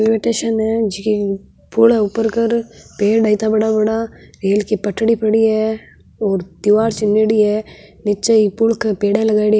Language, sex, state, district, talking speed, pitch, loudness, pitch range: Marwari, female, Rajasthan, Nagaur, 170 wpm, 220 Hz, -16 LUFS, 210-225 Hz